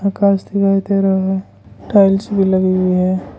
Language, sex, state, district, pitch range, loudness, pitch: Hindi, male, Jharkhand, Ranchi, 190-200 Hz, -15 LUFS, 195 Hz